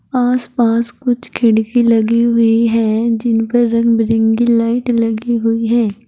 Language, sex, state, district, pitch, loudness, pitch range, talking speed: Hindi, female, Uttar Pradesh, Saharanpur, 230 Hz, -14 LUFS, 225-240 Hz, 140 wpm